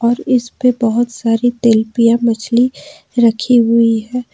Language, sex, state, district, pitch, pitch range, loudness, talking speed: Hindi, female, Jharkhand, Ranchi, 235 Hz, 230-245 Hz, -14 LUFS, 140 wpm